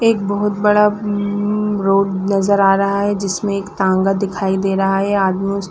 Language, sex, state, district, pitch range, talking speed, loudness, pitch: Hindi, female, Chhattisgarh, Raigarh, 195-205 Hz, 180 wpm, -16 LUFS, 200 Hz